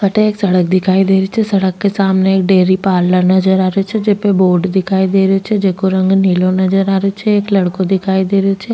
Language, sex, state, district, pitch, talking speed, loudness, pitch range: Rajasthani, female, Rajasthan, Nagaur, 190 Hz, 245 wpm, -13 LUFS, 185-195 Hz